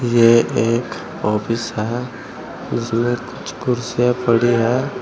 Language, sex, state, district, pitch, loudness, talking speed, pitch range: Hindi, male, Uttar Pradesh, Saharanpur, 120 Hz, -18 LUFS, 110 wpm, 115-125 Hz